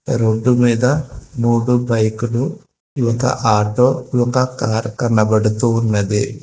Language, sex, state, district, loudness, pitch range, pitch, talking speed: Telugu, male, Telangana, Hyderabad, -17 LUFS, 110-125 Hz, 120 Hz, 95 wpm